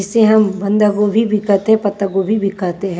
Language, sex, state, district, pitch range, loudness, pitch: Hindi, female, Maharashtra, Washim, 195-215 Hz, -15 LUFS, 205 Hz